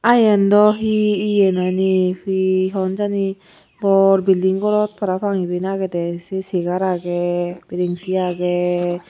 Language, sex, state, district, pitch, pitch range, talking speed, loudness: Chakma, female, Tripura, Unakoti, 190 Hz, 180-200 Hz, 140 wpm, -18 LUFS